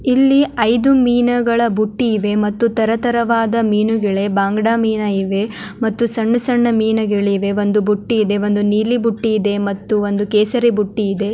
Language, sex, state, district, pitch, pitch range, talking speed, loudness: Kannada, male, Karnataka, Dharwad, 220 Hz, 205-235 Hz, 145 wpm, -16 LUFS